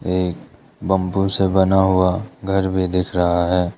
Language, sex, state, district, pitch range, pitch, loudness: Hindi, male, Arunachal Pradesh, Lower Dibang Valley, 90-95 Hz, 95 Hz, -18 LUFS